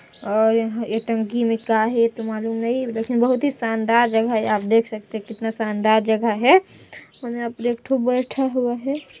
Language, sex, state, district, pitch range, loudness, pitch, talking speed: Hindi, female, Chhattisgarh, Balrampur, 220-240 Hz, -21 LUFS, 230 Hz, 200 wpm